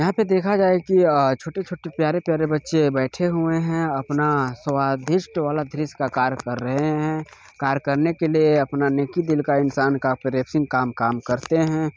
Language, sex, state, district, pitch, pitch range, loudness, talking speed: Hindi, male, Chhattisgarh, Bilaspur, 150 Hz, 135-165 Hz, -21 LUFS, 185 wpm